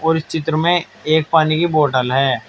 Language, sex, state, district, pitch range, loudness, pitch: Hindi, male, Uttar Pradesh, Saharanpur, 150-160 Hz, -16 LUFS, 155 Hz